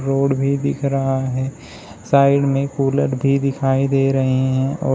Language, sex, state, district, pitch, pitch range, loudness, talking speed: Hindi, male, Uttar Pradesh, Shamli, 135 Hz, 135-140 Hz, -18 LUFS, 170 wpm